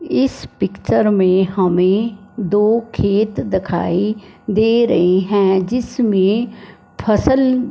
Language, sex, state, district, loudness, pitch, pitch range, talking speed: Hindi, male, Punjab, Fazilka, -16 LUFS, 205 Hz, 190-230 Hz, 95 wpm